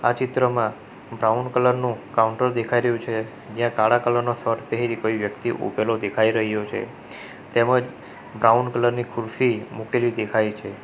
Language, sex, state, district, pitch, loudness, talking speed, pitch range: Gujarati, male, Gujarat, Valsad, 120 Hz, -22 LUFS, 160 wpm, 110-120 Hz